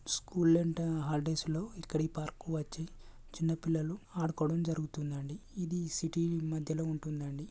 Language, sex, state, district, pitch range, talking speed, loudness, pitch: Telugu, male, Telangana, Karimnagar, 155-165 Hz, 130 wpm, -35 LUFS, 160 Hz